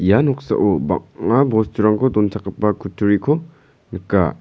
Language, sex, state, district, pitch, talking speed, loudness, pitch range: Garo, male, Meghalaya, South Garo Hills, 105 Hz, 95 wpm, -18 LUFS, 100-135 Hz